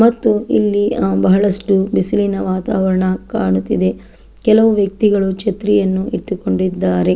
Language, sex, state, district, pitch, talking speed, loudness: Kannada, female, Karnataka, Chamarajanagar, 190 Hz, 90 wpm, -15 LUFS